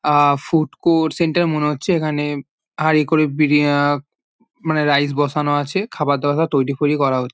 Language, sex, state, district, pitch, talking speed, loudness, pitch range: Bengali, male, West Bengal, Jhargram, 150 Hz, 190 wpm, -18 LUFS, 145-160 Hz